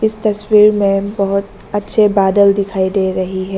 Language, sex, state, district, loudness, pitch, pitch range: Hindi, female, Arunachal Pradesh, Lower Dibang Valley, -14 LUFS, 200 Hz, 195-205 Hz